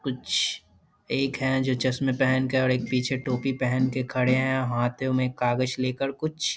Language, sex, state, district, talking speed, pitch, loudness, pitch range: Hindi, male, Bihar, Lakhisarai, 200 wpm, 130 Hz, -26 LUFS, 125-130 Hz